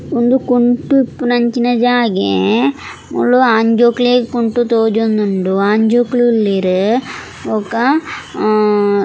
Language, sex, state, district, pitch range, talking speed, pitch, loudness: Tulu, female, Karnataka, Dakshina Kannada, 215-245 Hz, 75 wpm, 235 Hz, -13 LUFS